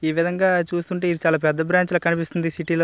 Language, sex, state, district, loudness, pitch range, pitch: Telugu, male, Andhra Pradesh, Visakhapatnam, -21 LUFS, 165-175 Hz, 170 Hz